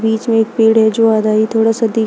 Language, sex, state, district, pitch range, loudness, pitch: Hindi, female, Uttar Pradesh, Shamli, 220-225 Hz, -13 LUFS, 225 Hz